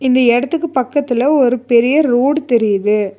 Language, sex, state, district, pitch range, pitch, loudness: Tamil, female, Tamil Nadu, Nilgiris, 235-280 Hz, 250 Hz, -14 LUFS